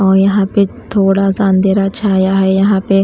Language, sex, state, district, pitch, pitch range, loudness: Hindi, female, Himachal Pradesh, Shimla, 195 Hz, 195-200 Hz, -12 LUFS